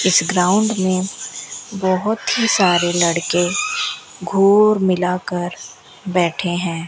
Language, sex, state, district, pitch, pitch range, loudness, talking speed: Hindi, female, Rajasthan, Bikaner, 185 Hz, 175-205 Hz, -17 LUFS, 95 wpm